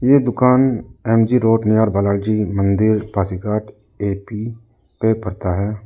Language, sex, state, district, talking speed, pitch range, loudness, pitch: Hindi, male, Arunachal Pradesh, Lower Dibang Valley, 125 wpm, 100-115 Hz, -18 LUFS, 110 Hz